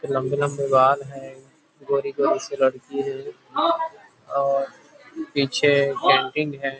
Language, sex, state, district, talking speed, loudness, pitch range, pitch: Hindi, male, Chhattisgarh, Rajnandgaon, 105 wpm, -22 LUFS, 135-150 Hz, 140 Hz